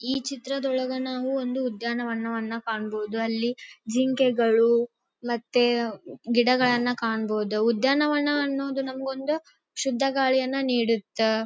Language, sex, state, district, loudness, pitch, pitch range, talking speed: Kannada, female, Karnataka, Dharwad, -25 LUFS, 245 Hz, 230-265 Hz, 95 wpm